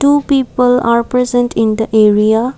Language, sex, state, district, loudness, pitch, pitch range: English, female, Assam, Kamrup Metropolitan, -12 LUFS, 245 Hz, 220-250 Hz